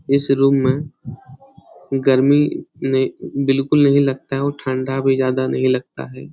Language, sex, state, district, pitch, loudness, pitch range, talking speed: Hindi, male, Bihar, Lakhisarai, 135 Hz, -18 LUFS, 130-140 Hz, 150 wpm